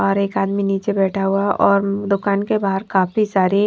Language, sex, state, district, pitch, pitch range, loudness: Hindi, female, Punjab, Fazilka, 195 Hz, 190-200 Hz, -18 LUFS